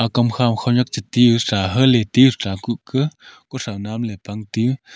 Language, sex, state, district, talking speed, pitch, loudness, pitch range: Wancho, male, Arunachal Pradesh, Longding, 180 wpm, 120 Hz, -18 LUFS, 110-125 Hz